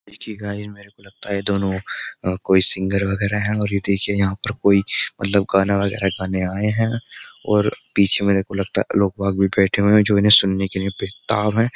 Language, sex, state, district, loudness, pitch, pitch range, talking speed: Hindi, male, Uttar Pradesh, Jyotiba Phule Nagar, -18 LUFS, 100 Hz, 95-105 Hz, 205 wpm